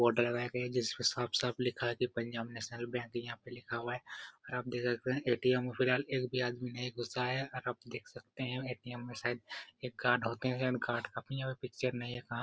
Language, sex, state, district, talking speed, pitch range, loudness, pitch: Hindi, male, Bihar, Araria, 230 wpm, 120-125 Hz, -36 LUFS, 125 Hz